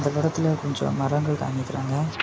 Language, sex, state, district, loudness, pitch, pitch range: Tamil, male, Tamil Nadu, Kanyakumari, -25 LUFS, 145 Hz, 135-155 Hz